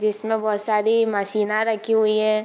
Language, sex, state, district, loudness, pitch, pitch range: Hindi, female, Bihar, Gopalganj, -21 LUFS, 215 Hz, 215-220 Hz